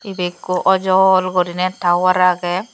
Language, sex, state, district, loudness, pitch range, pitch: Chakma, female, Tripura, Dhalai, -16 LUFS, 180-190 Hz, 185 Hz